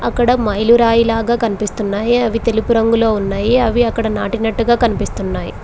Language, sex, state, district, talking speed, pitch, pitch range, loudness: Telugu, female, Telangana, Mahabubabad, 130 wpm, 230 Hz, 220-235 Hz, -15 LUFS